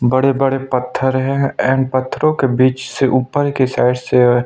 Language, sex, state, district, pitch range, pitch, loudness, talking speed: Hindi, male, Chhattisgarh, Sukma, 130-135 Hz, 130 Hz, -16 LUFS, 175 wpm